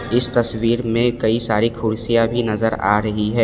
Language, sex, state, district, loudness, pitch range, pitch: Hindi, male, Assam, Kamrup Metropolitan, -18 LUFS, 110-120 Hz, 115 Hz